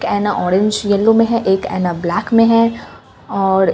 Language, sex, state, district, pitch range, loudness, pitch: Hindi, female, Bihar, Katihar, 190-230 Hz, -15 LUFS, 205 Hz